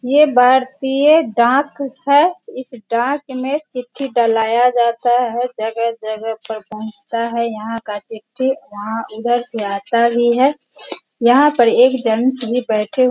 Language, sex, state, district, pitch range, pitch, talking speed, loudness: Hindi, female, Bihar, Sitamarhi, 225-260 Hz, 240 Hz, 140 wpm, -16 LUFS